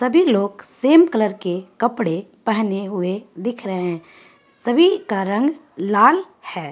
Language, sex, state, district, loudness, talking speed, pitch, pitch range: Hindi, female, Bihar, Gaya, -19 LUFS, 150 wpm, 220 Hz, 195-275 Hz